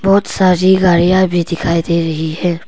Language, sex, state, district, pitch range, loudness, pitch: Hindi, female, Arunachal Pradesh, Papum Pare, 170-185 Hz, -13 LUFS, 175 Hz